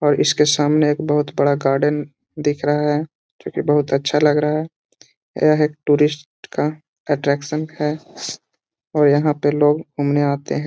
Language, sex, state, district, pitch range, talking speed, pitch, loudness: Hindi, male, Bihar, Jahanabad, 145-150 Hz, 170 wpm, 150 Hz, -19 LUFS